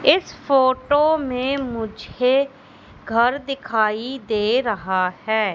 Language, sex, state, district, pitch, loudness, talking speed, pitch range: Hindi, female, Madhya Pradesh, Katni, 255 Hz, -21 LUFS, 95 wpm, 220-275 Hz